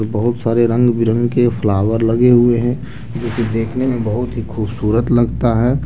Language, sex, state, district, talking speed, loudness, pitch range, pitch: Hindi, male, Jharkhand, Deoghar, 175 wpm, -16 LUFS, 115-120 Hz, 120 Hz